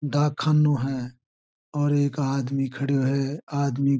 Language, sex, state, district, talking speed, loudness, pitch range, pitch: Marwari, male, Rajasthan, Churu, 135 wpm, -24 LUFS, 135-145 Hz, 140 Hz